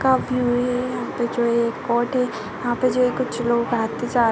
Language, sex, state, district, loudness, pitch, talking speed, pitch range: Hindi, female, Uttar Pradesh, Ghazipur, -22 LUFS, 240 Hz, 250 wpm, 235-250 Hz